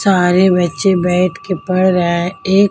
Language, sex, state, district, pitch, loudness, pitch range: Hindi, female, Maharashtra, Mumbai Suburban, 185 Hz, -14 LUFS, 180-190 Hz